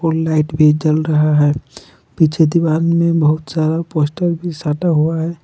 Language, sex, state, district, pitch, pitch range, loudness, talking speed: Hindi, male, Jharkhand, Palamu, 160 Hz, 155-165 Hz, -15 LUFS, 165 wpm